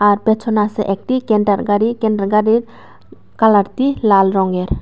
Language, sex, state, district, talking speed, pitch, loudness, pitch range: Bengali, female, Tripura, West Tripura, 135 wpm, 210 Hz, -15 LUFS, 200-225 Hz